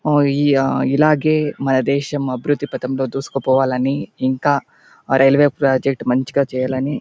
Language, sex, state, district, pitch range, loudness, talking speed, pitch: Telugu, male, Andhra Pradesh, Anantapur, 130-145 Hz, -17 LUFS, 130 wpm, 135 Hz